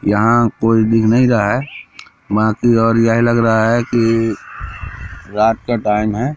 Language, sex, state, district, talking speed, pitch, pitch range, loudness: Hindi, male, Madhya Pradesh, Katni, 140 wpm, 115 Hz, 105-120 Hz, -14 LUFS